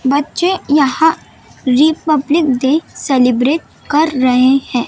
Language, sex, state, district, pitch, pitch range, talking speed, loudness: Hindi, female, Madhya Pradesh, Dhar, 285 Hz, 260-315 Hz, 100 wpm, -13 LUFS